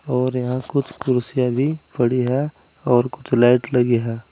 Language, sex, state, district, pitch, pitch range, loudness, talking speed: Hindi, male, Uttar Pradesh, Saharanpur, 125 Hz, 125-130 Hz, -20 LUFS, 165 wpm